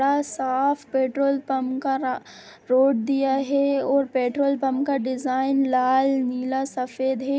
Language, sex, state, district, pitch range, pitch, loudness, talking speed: Hindi, female, Bihar, Sitamarhi, 260-275 Hz, 270 Hz, -23 LUFS, 145 wpm